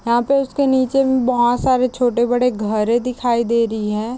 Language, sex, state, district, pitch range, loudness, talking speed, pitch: Hindi, female, Chhattisgarh, Raigarh, 235-255 Hz, -17 LUFS, 185 wpm, 245 Hz